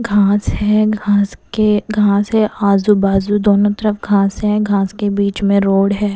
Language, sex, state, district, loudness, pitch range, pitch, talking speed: Hindi, female, Bihar, West Champaran, -15 LUFS, 200-210 Hz, 205 Hz, 175 wpm